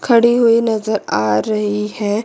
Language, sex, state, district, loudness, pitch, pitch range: Hindi, female, Chandigarh, Chandigarh, -16 LUFS, 215 Hz, 205-230 Hz